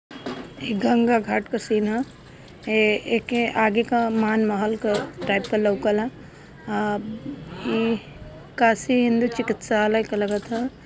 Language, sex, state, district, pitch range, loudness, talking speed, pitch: Hindi, female, Uttar Pradesh, Varanasi, 210-235 Hz, -23 LUFS, 125 wpm, 220 Hz